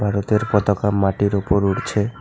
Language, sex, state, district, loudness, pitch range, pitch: Bengali, male, West Bengal, Alipurduar, -19 LUFS, 100-105 Hz, 100 Hz